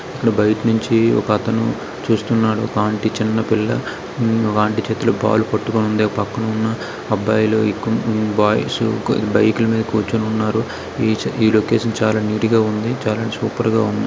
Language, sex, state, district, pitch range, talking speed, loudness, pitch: Telugu, male, Andhra Pradesh, Srikakulam, 110-115 Hz, 135 wpm, -18 LUFS, 110 Hz